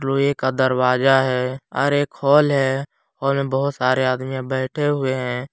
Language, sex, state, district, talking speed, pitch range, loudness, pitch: Hindi, male, Jharkhand, Palamu, 175 wpm, 130-140 Hz, -20 LUFS, 135 Hz